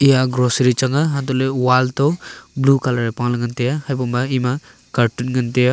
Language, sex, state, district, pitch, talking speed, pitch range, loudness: Wancho, male, Arunachal Pradesh, Longding, 130 Hz, 250 wpm, 125-135 Hz, -18 LUFS